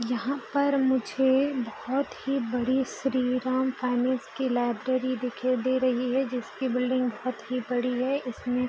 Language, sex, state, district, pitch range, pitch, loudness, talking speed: Hindi, female, Bihar, East Champaran, 250-265 Hz, 255 Hz, -27 LUFS, 150 wpm